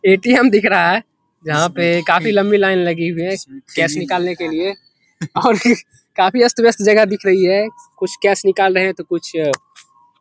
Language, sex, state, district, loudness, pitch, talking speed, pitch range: Hindi, male, Bihar, Begusarai, -15 LUFS, 190 Hz, 180 wpm, 170-215 Hz